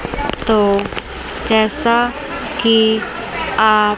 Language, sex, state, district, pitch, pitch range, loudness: Hindi, female, Chandigarh, Chandigarh, 220 Hz, 215-235 Hz, -16 LUFS